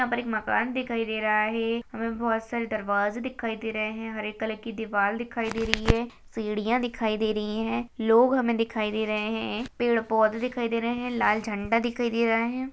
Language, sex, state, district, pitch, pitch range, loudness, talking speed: Hindi, female, Chhattisgarh, Jashpur, 225 Hz, 220-235 Hz, -27 LUFS, 220 wpm